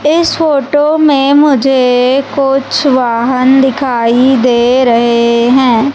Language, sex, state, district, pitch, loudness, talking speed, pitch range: Hindi, female, Madhya Pradesh, Umaria, 265 Hz, -9 LUFS, 100 wpm, 245-280 Hz